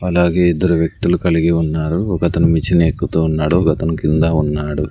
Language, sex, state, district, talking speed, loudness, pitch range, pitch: Telugu, male, Andhra Pradesh, Sri Satya Sai, 160 wpm, -16 LUFS, 80-85 Hz, 80 Hz